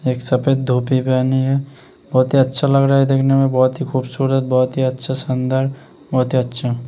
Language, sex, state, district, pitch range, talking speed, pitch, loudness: Hindi, male, Uttar Pradesh, Hamirpur, 130-135 Hz, 200 wpm, 130 Hz, -17 LUFS